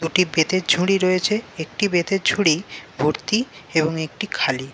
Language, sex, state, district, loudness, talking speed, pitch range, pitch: Bengali, male, West Bengal, Jalpaiguri, -20 LUFS, 140 wpm, 160-195 Hz, 180 Hz